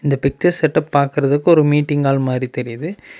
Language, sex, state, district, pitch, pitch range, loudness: Tamil, male, Tamil Nadu, Namakkal, 145 Hz, 135-155 Hz, -16 LUFS